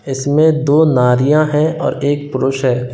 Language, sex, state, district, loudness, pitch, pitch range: Hindi, male, Rajasthan, Jaipur, -14 LUFS, 140 Hz, 130-150 Hz